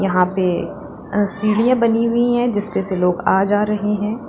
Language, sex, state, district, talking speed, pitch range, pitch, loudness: Hindi, female, Uttar Pradesh, Lalitpur, 195 wpm, 195-230 Hz, 210 Hz, -18 LUFS